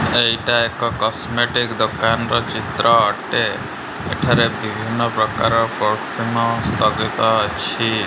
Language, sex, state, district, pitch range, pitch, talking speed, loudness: Odia, male, Odisha, Malkangiri, 110-115 Hz, 115 Hz, 90 wpm, -18 LUFS